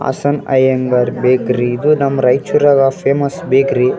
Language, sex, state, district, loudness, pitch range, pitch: Kannada, male, Karnataka, Raichur, -13 LUFS, 125-140 Hz, 135 Hz